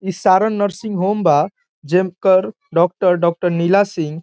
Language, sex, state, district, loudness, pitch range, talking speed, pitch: Bhojpuri, male, Bihar, Saran, -16 LUFS, 170-200 Hz, 155 wpm, 185 Hz